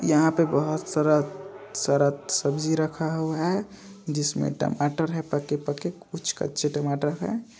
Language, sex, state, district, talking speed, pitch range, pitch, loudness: Hindi, male, Bihar, Saharsa, 135 wpm, 145-180 Hz, 155 Hz, -26 LUFS